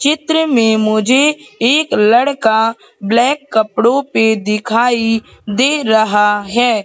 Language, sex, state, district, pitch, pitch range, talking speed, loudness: Hindi, female, Madhya Pradesh, Katni, 230 Hz, 220-265 Hz, 105 wpm, -13 LUFS